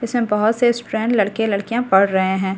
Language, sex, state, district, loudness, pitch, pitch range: Hindi, female, Delhi, New Delhi, -18 LUFS, 220 Hz, 195-235 Hz